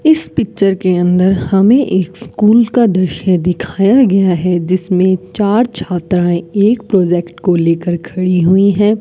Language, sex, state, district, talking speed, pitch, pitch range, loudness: Hindi, female, Rajasthan, Bikaner, 145 wpm, 190 Hz, 180-210 Hz, -12 LUFS